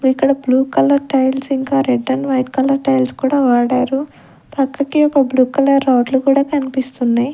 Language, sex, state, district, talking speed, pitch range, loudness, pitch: Telugu, female, Andhra Pradesh, Sri Satya Sai, 165 wpm, 260-275 Hz, -15 LUFS, 270 Hz